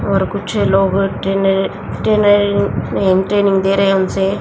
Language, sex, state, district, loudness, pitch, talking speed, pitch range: Hindi, female, Haryana, Jhajjar, -15 LUFS, 195 Hz, 150 wpm, 195-200 Hz